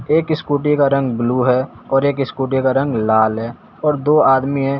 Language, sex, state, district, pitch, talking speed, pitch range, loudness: Hindi, male, Delhi, New Delhi, 135 Hz, 210 wpm, 125-145 Hz, -16 LUFS